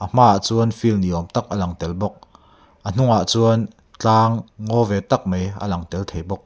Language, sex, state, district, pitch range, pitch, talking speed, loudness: Mizo, male, Mizoram, Aizawl, 95-115 Hz, 100 Hz, 225 wpm, -19 LUFS